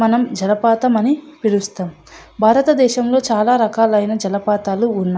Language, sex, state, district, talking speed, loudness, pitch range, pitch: Telugu, female, Andhra Pradesh, Anantapur, 105 wpm, -16 LUFS, 205-245 Hz, 220 Hz